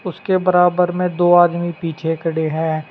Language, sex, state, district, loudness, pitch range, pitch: Hindi, male, Uttar Pradesh, Saharanpur, -17 LUFS, 160-180 Hz, 175 Hz